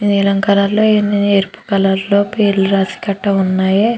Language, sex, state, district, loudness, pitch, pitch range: Telugu, female, Andhra Pradesh, Chittoor, -14 LUFS, 200 Hz, 195-205 Hz